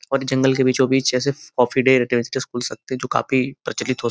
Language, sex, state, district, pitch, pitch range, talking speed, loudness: Hindi, male, Uttar Pradesh, Gorakhpur, 130 Hz, 125-135 Hz, 220 wpm, -20 LUFS